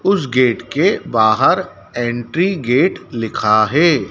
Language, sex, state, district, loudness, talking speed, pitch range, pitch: Hindi, male, Madhya Pradesh, Dhar, -16 LUFS, 115 wpm, 115-170 Hz, 125 Hz